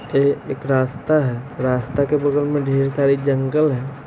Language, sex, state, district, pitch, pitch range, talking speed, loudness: Hindi, male, Bihar, Sitamarhi, 140 Hz, 135-145 Hz, 175 wpm, -19 LUFS